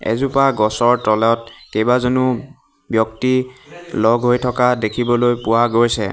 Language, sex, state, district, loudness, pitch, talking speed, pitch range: Assamese, male, Assam, Hailakandi, -17 LUFS, 120 Hz, 110 wpm, 115-125 Hz